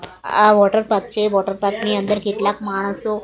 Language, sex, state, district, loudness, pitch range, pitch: Gujarati, female, Gujarat, Gandhinagar, -18 LUFS, 200-210 Hz, 205 Hz